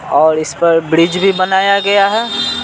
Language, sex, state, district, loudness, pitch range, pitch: Hindi, male, Bihar, Patna, -12 LUFS, 165-200 Hz, 185 Hz